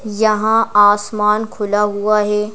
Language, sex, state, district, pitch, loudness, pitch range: Hindi, female, Madhya Pradesh, Bhopal, 210 Hz, -15 LUFS, 205-215 Hz